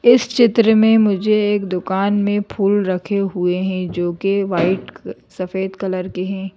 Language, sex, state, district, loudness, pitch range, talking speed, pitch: Hindi, female, Madhya Pradesh, Bhopal, -17 LUFS, 185-205 Hz, 165 wpm, 195 Hz